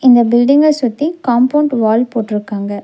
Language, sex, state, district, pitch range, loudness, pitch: Tamil, female, Tamil Nadu, Nilgiris, 225-285 Hz, -13 LUFS, 245 Hz